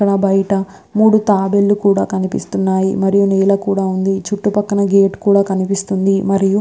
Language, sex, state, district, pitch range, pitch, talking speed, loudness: Telugu, female, Andhra Pradesh, Visakhapatnam, 195-200 Hz, 195 Hz, 135 wpm, -15 LUFS